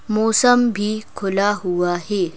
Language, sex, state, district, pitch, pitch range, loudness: Hindi, female, Madhya Pradesh, Bhopal, 205 Hz, 185-220 Hz, -18 LUFS